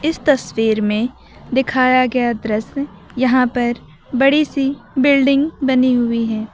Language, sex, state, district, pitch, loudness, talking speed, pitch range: Hindi, female, Uttar Pradesh, Lucknow, 255 Hz, -17 LUFS, 130 wpm, 235-275 Hz